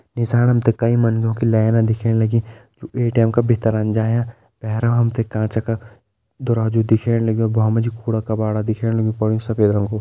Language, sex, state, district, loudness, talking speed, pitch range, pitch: Kumaoni, male, Uttarakhand, Tehri Garhwal, -19 LUFS, 175 wpm, 110-115 Hz, 115 Hz